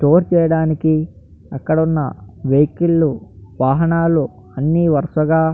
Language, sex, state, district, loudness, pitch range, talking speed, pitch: Telugu, male, Andhra Pradesh, Anantapur, -16 LUFS, 135-165 Hz, 95 wpm, 155 Hz